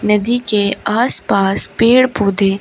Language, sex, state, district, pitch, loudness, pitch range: Hindi, female, Uttar Pradesh, Shamli, 210 Hz, -14 LUFS, 200-240 Hz